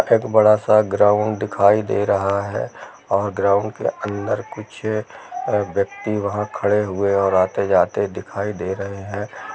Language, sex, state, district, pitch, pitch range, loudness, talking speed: Hindi, male, Bihar, Sitamarhi, 105 Hz, 100-105 Hz, -20 LUFS, 150 wpm